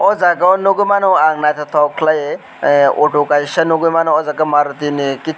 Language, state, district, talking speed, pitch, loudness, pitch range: Kokborok, Tripura, West Tripura, 190 wpm, 155 Hz, -14 LUFS, 145-165 Hz